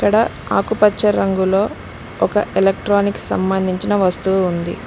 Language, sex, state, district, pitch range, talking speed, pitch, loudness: Telugu, female, Telangana, Mahabubabad, 190-205 Hz, 100 wpm, 195 Hz, -17 LUFS